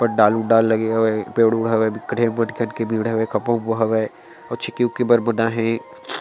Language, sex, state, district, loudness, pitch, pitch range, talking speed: Chhattisgarhi, male, Chhattisgarh, Sarguja, -20 LUFS, 115 Hz, 110-115 Hz, 220 wpm